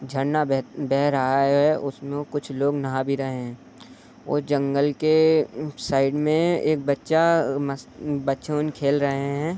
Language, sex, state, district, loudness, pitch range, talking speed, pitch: Hindi, male, Uttar Pradesh, Etah, -23 LUFS, 135-150 Hz, 155 wpm, 140 Hz